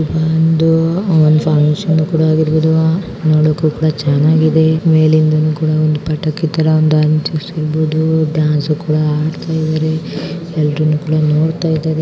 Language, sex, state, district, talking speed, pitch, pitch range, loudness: Kannada, female, Karnataka, Raichur, 105 wpm, 155 Hz, 155-160 Hz, -14 LUFS